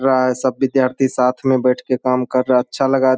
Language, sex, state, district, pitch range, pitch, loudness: Hindi, male, Bihar, Saharsa, 125-130 Hz, 130 Hz, -17 LUFS